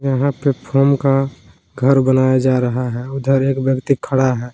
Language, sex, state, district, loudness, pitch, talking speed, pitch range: Hindi, male, Jharkhand, Palamu, -16 LUFS, 135 Hz, 185 wpm, 130-135 Hz